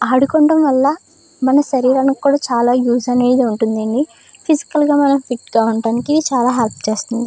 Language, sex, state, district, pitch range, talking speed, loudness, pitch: Telugu, female, Andhra Pradesh, Krishna, 240-285 Hz, 155 wpm, -15 LUFS, 260 Hz